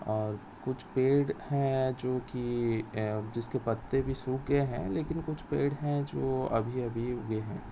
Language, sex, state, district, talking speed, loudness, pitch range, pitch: Hindi, male, Bihar, Lakhisarai, 165 wpm, -32 LUFS, 115-135 Hz, 130 Hz